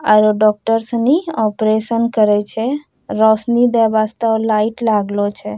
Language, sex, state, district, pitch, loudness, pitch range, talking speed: Angika, female, Bihar, Bhagalpur, 220 Hz, -15 LUFS, 215-230 Hz, 130 wpm